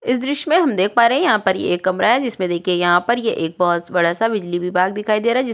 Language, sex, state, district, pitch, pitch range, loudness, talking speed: Hindi, female, Uttarakhand, Tehri Garhwal, 200 Hz, 180-235 Hz, -17 LUFS, 325 wpm